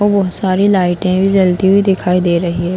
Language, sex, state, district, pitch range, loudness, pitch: Hindi, female, Bihar, Darbhanga, 180-195 Hz, -13 LUFS, 185 Hz